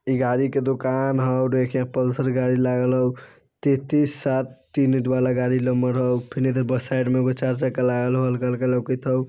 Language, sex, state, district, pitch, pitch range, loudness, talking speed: Bajjika, male, Bihar, Vaishali, 130 Hz, 125-130 Hz, -22 LUFS, 185 wpm